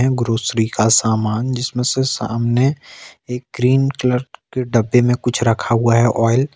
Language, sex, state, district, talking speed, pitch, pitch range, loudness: Hindi, male, Jharkhand, Ranchi, 165 wpm, 120 Hz, 115-125 Hz, -17 LUFS